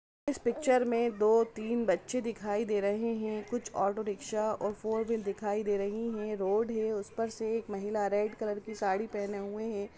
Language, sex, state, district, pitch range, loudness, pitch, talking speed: Bhojpuri, female, Bihar, Saran, 205-230 Hz, -32 LUFS, 215 Hz, 200 wpm